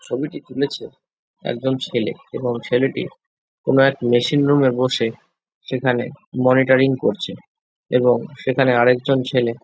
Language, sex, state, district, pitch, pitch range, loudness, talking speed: Bengali, male, West Bengal, Jhargram, 130 Hz, 125-135 Hz, -19 LUFS, 120 wpm